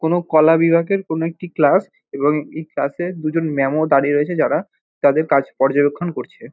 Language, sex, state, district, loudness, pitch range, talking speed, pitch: Bengali, male, West Bengal, North 24 Parganas, -18 LUFS, 145-170 Hz, 185 wpm, 155 Hz